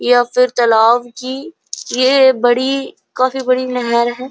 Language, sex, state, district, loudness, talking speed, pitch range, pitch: Hindi, female, Uttar Pradesh, Jyotiba Phule Nagar, -14 LUFS, 155 wpm, 240-260 Hz, 250 Hz